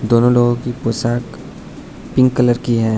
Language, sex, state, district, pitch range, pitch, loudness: Hindi, male, Arunachal Pradesh, Lower Dibang Valley, 115-125 Hz, 120 Hz, -16 LUFS